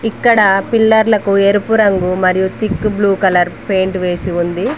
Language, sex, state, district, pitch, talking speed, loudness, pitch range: Telugu, female, Telangana, Mahabubabad, 195 Hz, 140 wpm, -13 LUFS, 185-215 Hz